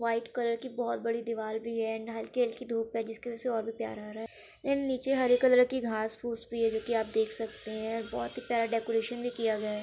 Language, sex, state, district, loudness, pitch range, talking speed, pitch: Hindi, female, Uttar Pradesh, Varanasi, -32 LUFS, 225-240 Hz, 275 wpm, 230 Hz